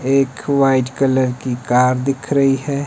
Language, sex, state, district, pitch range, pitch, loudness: Hindi, male, Himachal Pradesh, Shimla, 130-135 Hz, 135 Hz, -17 LUFS